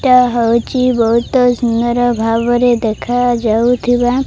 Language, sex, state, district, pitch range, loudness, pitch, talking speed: Odia, female, Odisha, Malkangiri, 230-245 Hz, -13 LUFS, 240 Hz, 100 wpm